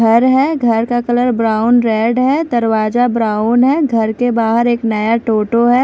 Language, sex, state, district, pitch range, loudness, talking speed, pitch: Hindi, female, Odisha, Khordha, 225-245 Hz, -13 LUFS, 185 wpm, 235 Hz